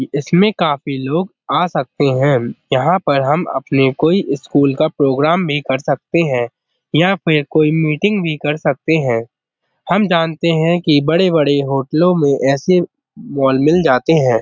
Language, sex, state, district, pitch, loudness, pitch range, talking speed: Hindi, male, Uttar Pradesh, Budaun, 155 Hz, -15 LUFS, 140-170 Hz, 160 wpm